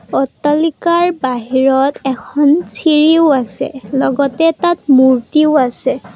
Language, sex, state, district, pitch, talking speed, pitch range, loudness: Assamese, female, Assam, Kamrup Metropolitan, 280 Hz, 90 wpm, 265-315 Hz, -13 LUFS